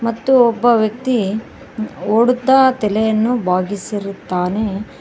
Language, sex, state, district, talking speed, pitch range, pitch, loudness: Kannada, female, Karnataka, Koppal, 70 wpm, 205-245 Hz, 220 Hz, -16 LUFS